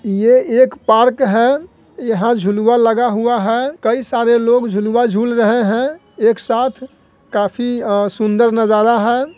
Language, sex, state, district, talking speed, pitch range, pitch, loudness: Hindi, male, Bihar, Sitamarhi, 145 wpm, 220-245 Hz, 235 Hz, -14 LUFS